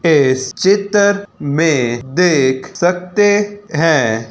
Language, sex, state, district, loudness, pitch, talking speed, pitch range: Hindi, male, Uttar Pradesh, Budaun, -14 LUFS, 165 Hz, 85 wpm, 130-200 Hz